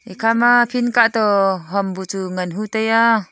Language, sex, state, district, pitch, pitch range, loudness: Wancho, female, Arunachal Pradesh, Longding, 215 Hz, 190-230 Hz, -17 LUFS